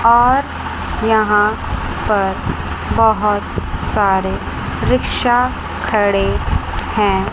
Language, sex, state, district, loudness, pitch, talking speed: Hindi, female, Chandigarh, Chandigarh, -16 LUFS, 195 Hz, 65 wpm